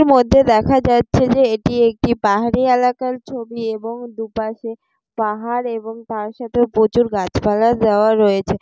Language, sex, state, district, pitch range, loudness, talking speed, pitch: Bengali, female, West Bengal, Jalpaiguri, 220-250 Hz, -17 LUFS, 155 wpm, 230 Hz